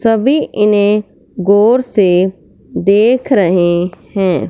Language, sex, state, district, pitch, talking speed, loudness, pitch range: Hindi, male, Punjab, Fazilka, 200 Hz, 95 wpm, -12 LUFS, 180-220 Hz